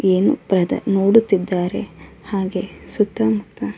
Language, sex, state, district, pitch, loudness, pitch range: Kannada, female, Karnataka, Bellary, 190 Hz, -19 LUFS, 180-200 Hz